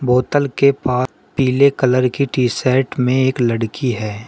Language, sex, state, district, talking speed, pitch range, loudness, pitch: Hindi, male, Uttar Pradesh, Shamli, 170 wpm, 125-135 Hz, -17 LUFS, 130 Hz